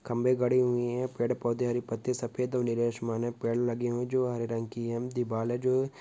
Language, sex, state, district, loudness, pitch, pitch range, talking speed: Hindi, male, West Bengal, Dakshin Dinajpur, -30 LUFS, 120 Hz, 115-125 Hz, 250 wpm